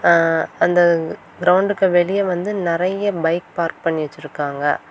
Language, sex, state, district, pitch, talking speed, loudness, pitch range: Tamil, female, Tamil Nadu, Kanyakumari, 170 Hz, 120 wpm, -18 LUFS, 165-185 Hz